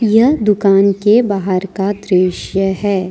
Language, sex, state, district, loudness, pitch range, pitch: Hindi, female, Jharkhand, Deoghar, -14 LUFS, 190-210 Hz, 200 Hz